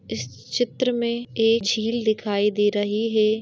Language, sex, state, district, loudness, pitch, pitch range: Hindi, female, West Bengal, Dakshin Dinajpur, -23 LUFS, 220 Hz, 205-230 Hz